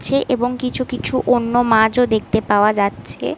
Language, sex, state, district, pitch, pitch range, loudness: Bengali, female, West Bengal, Kolkata, 245 Hz, 220-250 Hz, -17 LUFS